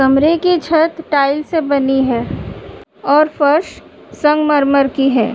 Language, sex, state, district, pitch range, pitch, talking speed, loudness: Hindi, female, Uttar Pradesh, Budaun, 275-315 Hz, 290 Hz, 135 wpm, -14 LUFS